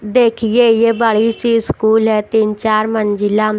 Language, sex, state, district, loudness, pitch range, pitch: Hindi, female, Haryana, Jhajjar, -14 LUFS, 215-230 Hz, 220 Hz